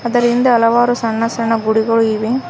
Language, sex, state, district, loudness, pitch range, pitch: Kannada, female, Karnataka, Koppal, -14 LUFS, 225-240 Hz, 230 Hz